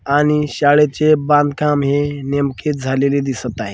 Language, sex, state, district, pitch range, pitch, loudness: Marathi, male, Maharashtra, Washim, 140-150 Hz, 145 Hz, -16 LUFS